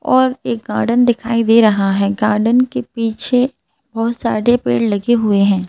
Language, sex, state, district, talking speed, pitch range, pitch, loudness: Hindi, female, Madhya Pradesh, Bhopal, 170 wpm, 210-245 Hz, 230 Hz, -15 LUFS